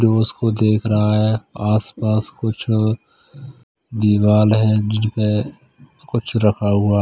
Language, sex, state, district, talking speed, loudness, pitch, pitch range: Hindi, male, Chandigarh, Chandigarh, 120 wpm, -18 LUFS, 110 Hz, 105-115 Hz